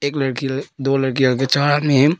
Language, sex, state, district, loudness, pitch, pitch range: Hindi, female, Arunachal Pradesh, Papum Pare, -18 LUFS, 135 Hz, 135-145 Hz